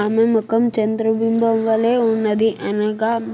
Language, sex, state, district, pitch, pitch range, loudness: Telugu, female, Telangana, Nalgonda, 225 Hz, 215-225 Hz, -18 LUFS